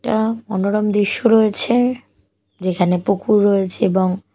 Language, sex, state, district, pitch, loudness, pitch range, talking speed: Bengali, female, Odisha, Malkangiri, 205 Hz, -17 LUFS, 190-220 Hz, 110 wpm